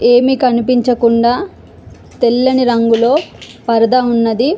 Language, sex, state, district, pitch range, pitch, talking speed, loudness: Telugu, female, Telangana, Karimnagar, 235-255 Hz, 240 Hz, 90 wpm, -12 LUFS